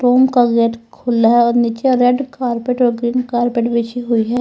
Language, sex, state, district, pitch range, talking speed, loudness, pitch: Hindi, female, Uttar Pradesh, Lalitpur, 235-250 Hz, 205 wpm, -15 LUFS, 240 Hz